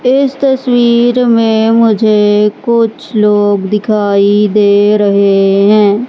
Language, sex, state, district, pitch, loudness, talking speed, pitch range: Hindi, male, Madhya Pradesh, Katni, 210 Hz, -9 LUFS, 100 wpm, 205-235 Hz